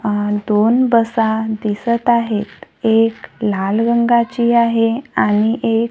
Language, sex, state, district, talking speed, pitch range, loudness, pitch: Marathi, female, Maharashtra, Gondia, 110 wpm, 210-235 Hz, -16 LUFS, 225 Hz